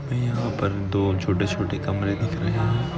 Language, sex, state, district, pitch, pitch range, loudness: Hindi, male, Maharashtra, Nagpur, 100 Hz, 100-120 Hz, -24 LUFS